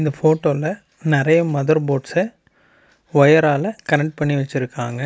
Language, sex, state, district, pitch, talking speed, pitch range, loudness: Tamil, male, Tamil Nadu, Namakkal, 150 Hz, 105 wpm, 140-160 Hz, -18 LUFS